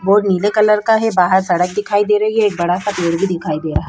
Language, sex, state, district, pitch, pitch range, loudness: Hindi, female, Goa, North and South Goa, 200 Hz, 180-210 Hz, -15 LUFS